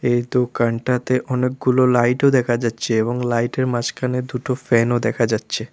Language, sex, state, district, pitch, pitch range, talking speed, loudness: Bengali, male, Tripura, West Tripura, 125 Hz, 120-125 Hz, 135 wpm, -19 LUFS